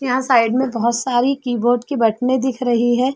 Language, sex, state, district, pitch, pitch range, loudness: Hindi, female, Chhattisgarh, Bastar, 250 Hz, 240-260 Hz, -17 LUFS